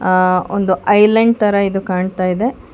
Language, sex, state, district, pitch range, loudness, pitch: Kannada, female, Karnataka, Bangalore, 185-210 Hz, -14 LUFS, 195 Hz